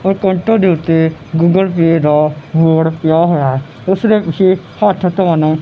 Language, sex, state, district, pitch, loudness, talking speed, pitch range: Punjabi, male, Punjab, Kapurthala, 165 Hz, -12 LUFS, 160 wpm, 160-190 Hz